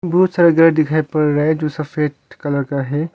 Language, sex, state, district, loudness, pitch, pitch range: Hindi, male, Arunachal Pradesh, Longding, -16 LUFS, 155 Hz, 145-165 Hz